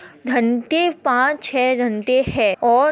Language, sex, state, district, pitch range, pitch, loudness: Hindi, female, Uttar Pradesh, Etah, 240-290 Hz, 255 Hz, -18 LUFS